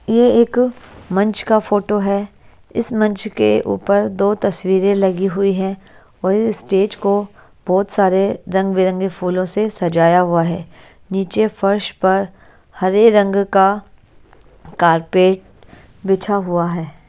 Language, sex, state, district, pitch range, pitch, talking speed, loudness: Hindi, female, Haryana, Jhajjar, 185-205 Hz, 195 Hz, 135 wpm, -16 LUFS